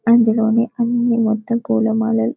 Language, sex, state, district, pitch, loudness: Telugu, female, Telangana, Karimnagar, 225 Hz, -17 LUFS